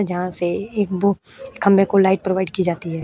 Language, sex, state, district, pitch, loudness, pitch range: Hindi, female, Uttar Pradesh, Budaun, 190 Hz, -19 LUFS, 180-200 Hz